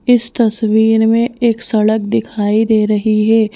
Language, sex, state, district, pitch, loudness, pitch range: Hindi, female, Madhya Pradesh, Bhopal, 220 Hz, -13 LUFS, 215-230 Hz